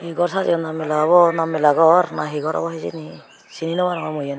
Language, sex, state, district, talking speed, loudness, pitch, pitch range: Chakma, female, Tripura, Unakoti, 220 wpm, -19 LUFS, 160 Hz, 150-170 Hz